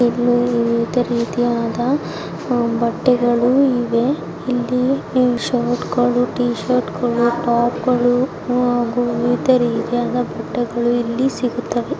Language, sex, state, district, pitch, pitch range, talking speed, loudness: Kannada, male, Karnataka, Bijapur, 245 Hz, 240-250 Hz, 90 wpm, -18 LUFS